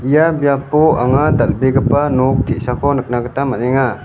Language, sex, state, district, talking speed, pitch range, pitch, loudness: Garo, male, Meghalaya, West Garo Hills, 135 wpm, 125-145 Hz, 135 Hz, -14 LUFS